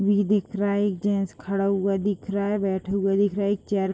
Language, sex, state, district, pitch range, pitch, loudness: Hindi, female, Jharkhand, Jamtara, 195-205 Hz, 200 Hz, -24 LUFS